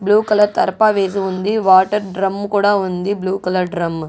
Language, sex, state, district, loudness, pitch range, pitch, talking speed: Telugu, female, Andhra Pradesh, Guntur, -16 LUFS, 185-205 Hz, 195 Hz, 190 wpm